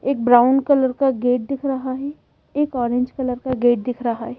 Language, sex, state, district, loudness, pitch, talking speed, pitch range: Hindi, female, Madhya Pradesh, Bhopal, -19 LUFS, 255 Hz, 220 wpm, 245-275 Hz